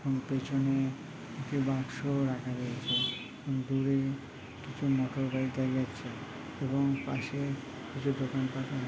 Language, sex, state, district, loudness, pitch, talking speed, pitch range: Bengali, male, West Bengal, Malda, -33 LUFS, 135 Hz, 110 wpm, 130-135 Hz